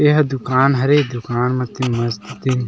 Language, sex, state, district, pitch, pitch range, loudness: Chhattisgarhi, male, Chhattisgarh, Sarguja, 130 Hz, 120-135 Hz, -18 LUFS